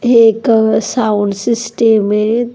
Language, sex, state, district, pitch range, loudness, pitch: Marathi, female, Maharashtra, Dhule, 215-235 Hz, -12 LUFS, 225 Hz